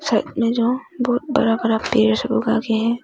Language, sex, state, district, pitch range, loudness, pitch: Hindi, female, Arunachal Pradesh, Longding, 225-245 Hz, -19 LUFS, 235 Hz